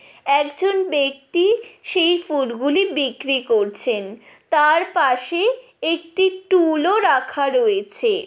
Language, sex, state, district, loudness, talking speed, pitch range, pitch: Bengali, female, West Bengal, Paschim Medinipur, -19 LUFS, 95 wpm, 275-390 Hz, 335 Hz